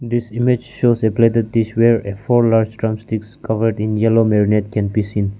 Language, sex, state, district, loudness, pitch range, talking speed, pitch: English, male, Nagaland, Kohima, -17 LUFS, 105-115 Hz, 210 wpm, 110 Hz